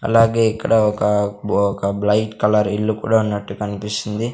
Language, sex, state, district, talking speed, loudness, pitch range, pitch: Telugu, male, Andhra Pradesh, Sri Satya Sai, 150 wpm, -18 LUFS, 105-110 Hz, 105 Hz